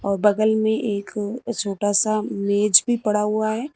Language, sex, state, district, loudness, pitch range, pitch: Hindi, female, Uttar Pradesh, Lucknow, -20 LUFS, 205-220 Hz, 210 Hz